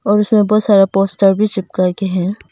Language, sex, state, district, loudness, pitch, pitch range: Hindi, female, Arunachal Pradesh, Papum Pare, -14 LUFS, 195 Hz, 190-210 Hz